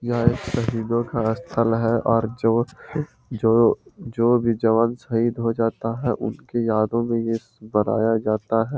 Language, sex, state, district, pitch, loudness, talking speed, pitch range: Hindi, male, Bihar, Gaya, 115 Hz, -22 LUFS, 145 wpm, 115-120 Hz